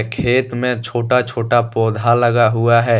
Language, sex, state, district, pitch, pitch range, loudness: Hindi, male, Jharkhand, Deoghar, 120 Hz, 115-125 Hz, -16 LUFS